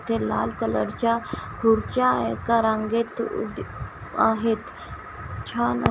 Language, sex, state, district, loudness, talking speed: Marathi, female, Maharashtra, Washim, -24 LUFS, 100 wpm